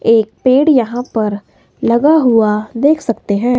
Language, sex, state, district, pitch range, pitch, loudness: Hindi, female, Himachal Pradesh, Shimla, 220-260 Hz, 235 Hz, -13 LUFS